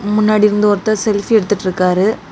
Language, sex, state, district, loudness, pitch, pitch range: Tamil, female, Tamil Nadu, Kanyakumari, -14 LUFS, 210 Hz, 200-215 Hz